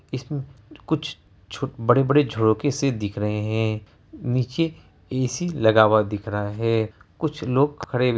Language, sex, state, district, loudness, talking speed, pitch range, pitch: Hindi, male, Bihar, Araria, -23 LUFS, 155 wpm, 110-140 Hz, 120 Hz